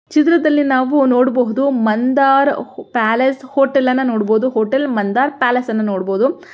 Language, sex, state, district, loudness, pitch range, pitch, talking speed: Kannada, female, Karnataka, Belgaum, -15 LUFS, 225-275 Hz, 260 Hz, 120 wpm